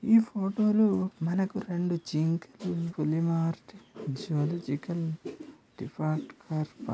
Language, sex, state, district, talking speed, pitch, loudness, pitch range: Telugu, male, Telangana, Nalgonda, 80 wpm, 170 Hz, -30 LUFS, 160-200 Hz